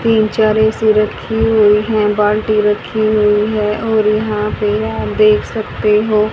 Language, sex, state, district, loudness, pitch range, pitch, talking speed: Hindi, female, Haryana, Charkhi Dadri, -14 LUFS, 210-220 Hz, 215 Hz, 160 wpm